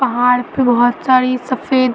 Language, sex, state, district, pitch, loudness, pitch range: Hindi, female, Uttar Pradesh, Muzaffarnagar, 255 Hz, -14 LUFS, 245-260 Hz